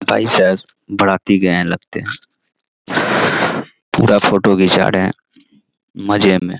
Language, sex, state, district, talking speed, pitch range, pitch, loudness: Hindi, male, Bihar, Araria, 125 wpm, 90-100 Hz, 95 Hz, -14 LUFS